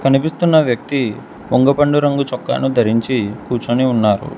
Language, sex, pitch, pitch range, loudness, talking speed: Telugu, male, 130 Hz, 120-140 Hz, -16 LUFS, 125 wpm